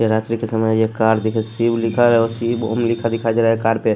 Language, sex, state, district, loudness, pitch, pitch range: Hindi, male, Delhi, New Delhi, -18 LUFS, 115 Hz, 110-115 Hz